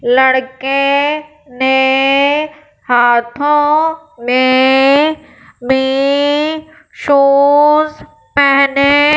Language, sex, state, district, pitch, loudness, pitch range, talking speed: Hindi, female, Punjab, Fazilka, 280 Hz, -12 LUFS, 265-300 Hz, 45 wpm